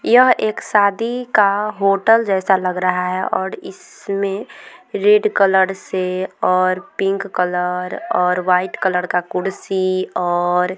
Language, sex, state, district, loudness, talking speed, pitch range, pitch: Hindi, female, Bihar, Vaishali, -17 LUFS, 135 wpm, 180-205 Hz, 190 Hz